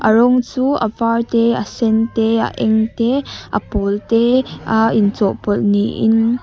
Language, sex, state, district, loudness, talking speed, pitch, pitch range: Mizo, female, Mizoram, Aizawl, -16 LUFS, 175 wpm, 225 Hz, 220-235 Hz